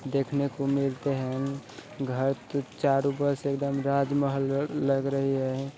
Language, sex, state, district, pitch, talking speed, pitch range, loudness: Hindi, male, Bihar, Sitamarhi, 140 Hz, 135 wpm, 135-140 Hz, -28 LUFS